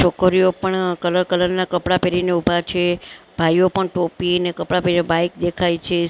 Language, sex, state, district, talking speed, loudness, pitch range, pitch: Gujarati, female, Maharashtra, Mumbai Suburban, 175 wpm, -19 LUFS, 175-185 Hz, 180 Hz